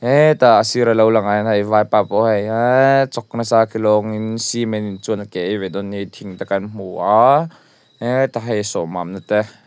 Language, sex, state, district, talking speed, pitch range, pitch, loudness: Mizo, male, Mizoram, Aizawl, 235 wpm, 100-120 Hz, 110 Hz, -17 LUFS